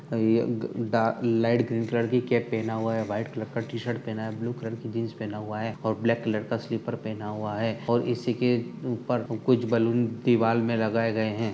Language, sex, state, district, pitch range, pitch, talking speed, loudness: Hindi, male, Uttar Pradesh, Budaun, 110-120 Hz, 115 Hz, 225 wpm, -27 LUFS